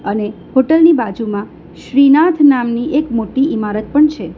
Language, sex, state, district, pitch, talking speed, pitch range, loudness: Gujarati, female, Gujarat, Valsad, 260 Hz, 150 wpm, 215-295 Hz, -13 LUFS